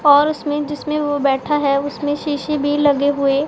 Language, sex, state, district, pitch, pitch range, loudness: Hindi, female, Punjab, Pathankot, 290 Hz, 285-295 Hz, -18 LUFS